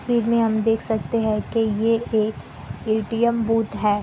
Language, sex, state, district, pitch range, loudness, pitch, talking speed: Hindi, female, Bihar, Kishanganj, 215-230 Hz, -22 LUFS, 225 Hz, 165 wpm